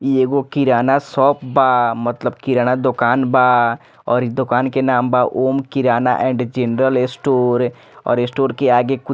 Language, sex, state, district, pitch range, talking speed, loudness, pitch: Bhojpuri, male, Bihar, Muzaffarpur, 125-135 Hz, 170 wpm, -16 LUFS, 125 Hz